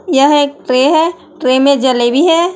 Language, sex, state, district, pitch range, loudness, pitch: Hindi, female, Chhattisgarh, Raipur, 260-325 Hz, -11 LUFS, 285 Hz